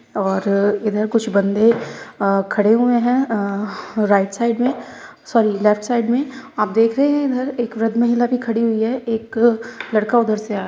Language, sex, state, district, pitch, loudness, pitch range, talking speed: Hindi, female, Uttar Pradesh, Hamirpur, 225 Hz, -18 LUFS, 210-240 Hz, 190 wpm